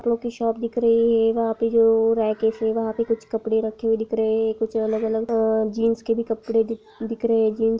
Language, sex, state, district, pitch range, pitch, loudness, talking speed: Hindi, female, Bihar, Gaya, 220-230 Hz, 225 Hz, -22 LUFS, 230 wpm